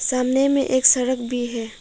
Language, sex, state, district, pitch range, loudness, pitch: Hindi, female, Arunachal Pradesh, Papum Pare, 245-260 Hz, -19 LUFS, 255 Hz